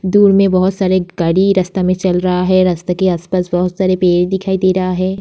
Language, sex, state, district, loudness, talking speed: Hindi, female, Uttar Pradesh, Jyotiba Phule Nagar, -14 LUFS, 240 wpm